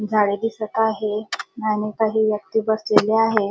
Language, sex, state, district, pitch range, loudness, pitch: Marathi, female, Maharashtra, Dhule, 210-220 Hz, -21 LUFS, 215 Hz